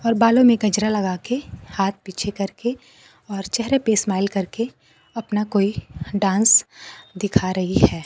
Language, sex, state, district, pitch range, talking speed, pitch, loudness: Hindi, female, Bihar, Kaimur, 195-230 Hz, 150 wpm, 205 Hz, -20 LUFS